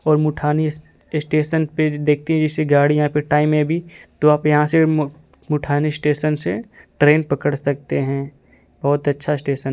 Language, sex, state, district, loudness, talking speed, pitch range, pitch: Hindi, male, Bihar, Kaimur, -19 LUFS, 175 wpm, 145-155 Hz, 150 Hz